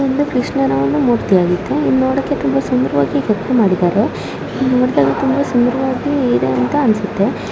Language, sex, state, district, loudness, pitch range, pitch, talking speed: Kannada, female, Karnataka, Shimoga, -15 LUFS, 175-265 Hz, 235 Hz, 135 wpm